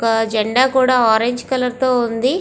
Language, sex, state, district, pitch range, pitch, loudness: Telugu, female, Andhra Pradesh, Visakhapatnam, 225-260 Hz, 245 Hz, -16 LUFS